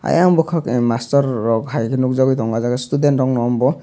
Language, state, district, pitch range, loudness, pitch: Kokborok, Tripura, Dhalai, 120-145 Hz, -17 LUFS, 130 Hz